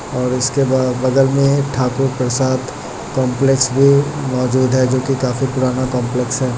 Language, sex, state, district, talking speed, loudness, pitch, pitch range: Hindi, male, Bihar, Muzaffarpur, 145 wpm, -16 LUFS, 130 Hz, 125-135 Hz